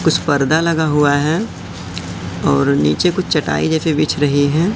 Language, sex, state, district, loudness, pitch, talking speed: Hindi, male, Madhya Pradesh, Katni, -16 LUFS, 145 Hz, 165 wpm